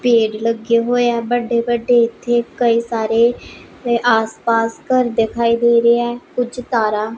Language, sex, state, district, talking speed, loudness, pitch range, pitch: Punjabi, female, Punjab, Pathankot, 140 wpm, -16 LUFS, 230-240 Hz, 235 Hz